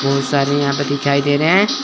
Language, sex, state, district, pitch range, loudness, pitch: Hindi, male, Chandigarh, Chandigarh, 140-145 Hz, -16 LUFS, 140 Hz